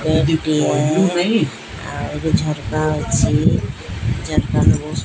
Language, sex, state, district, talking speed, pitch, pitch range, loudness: Odia, female, Odisha, Sambalpur, 60 wpm, 150 Hz, 115-155 Hz, -18 LUFS